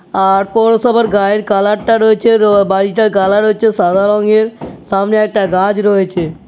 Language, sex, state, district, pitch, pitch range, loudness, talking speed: Bengali, female, West Bengal, North 24 Parganas, 210 Hz, 195-220 Hz, -12 LUFS, 150 wpm